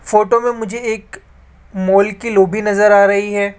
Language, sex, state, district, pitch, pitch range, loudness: Hindi, male, Rajasthan, Jaipur, 205 Hz, 200-220 Hz, -14 LUFS